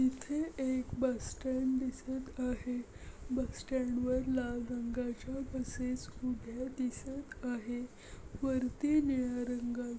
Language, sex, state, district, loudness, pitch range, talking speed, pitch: Marathi, female, Maharashtra, Aurangabad, -37 LUFS, 245-260 Hz, 110 wpm, 255 Hz